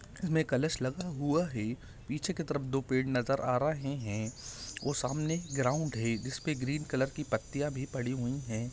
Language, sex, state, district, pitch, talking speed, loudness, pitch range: Hindi, male, Bihar, Gaya, 135 Hz, 185 wpm, -34 LUFS, 125-150 Hz